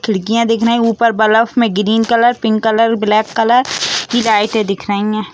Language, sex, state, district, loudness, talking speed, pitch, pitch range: Hindi, female, Bihar, Vaishali, -13 LUFS, 200 wpm, 225 Hz, 215-230 Hz